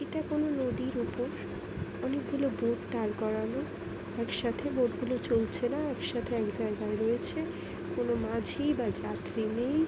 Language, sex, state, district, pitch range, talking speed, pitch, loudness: Bengali, female, West Bengal, Dakshin Dinajpur, 215-290 Hz, 160 wpm, 245 Hz, -33 LUFS